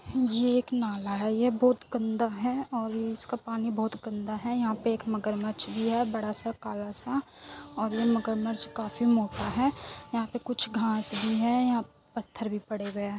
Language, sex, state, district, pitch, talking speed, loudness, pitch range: Hindi, female, Uttar Pradesh, Muzaffarnagar, 225 Hz, 195 wpm, -29 LUFS, 215-240 Hz